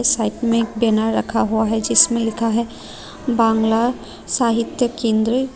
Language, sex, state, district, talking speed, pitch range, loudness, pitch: Hindi, female, Tripura, Unakoti, 140 wpm, 225-240 Hz, -18 LUFS, 230 Hz